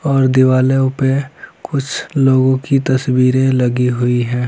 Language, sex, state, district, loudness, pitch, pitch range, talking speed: Hindi, male, Bihar, Lakhisarai, -14 LUFS, 130 Hz, 125-135 Hz, 145 wpm